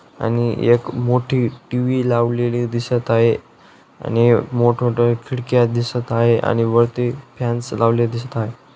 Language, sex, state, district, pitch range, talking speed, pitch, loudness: Marathi, male, Maharashtra, Dhule, 115-120 Hz, 125 wpm, 120 Hz, -18 LUFS